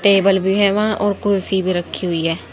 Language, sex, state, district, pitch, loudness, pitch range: Hindi, female, Haryana, Jhajjar, 195 Hz, -17 LUFS, 185-200 Hz